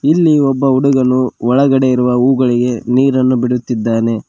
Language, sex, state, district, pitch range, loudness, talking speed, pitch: Kannada, male, Karnataka, Koppal, 125-135 Hz, -13 LUFS, 110 wpm, 130 Hz